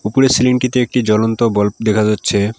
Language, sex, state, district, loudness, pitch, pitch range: Bengali, male, West Bengal, Alipurduar, -14 LUFS, 115 Hz, 105-125 Hz